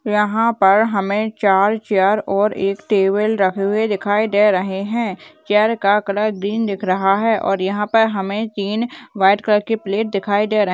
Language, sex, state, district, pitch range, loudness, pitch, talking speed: Hindi, female, Bihar, Purnia, 195-215 Hz, -17 LUFS, 205 Hz, 185 wpm